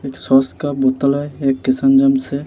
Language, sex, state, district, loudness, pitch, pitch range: Hindi, male, Bihar, Vaishali, -16 LUFS, 135 Hz, 135-140 Hz